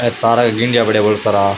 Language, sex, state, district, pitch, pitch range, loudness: Rajasthani, male, Rajasthan, Churu, 115 Hz, 105-120 Hz, -14 LUFS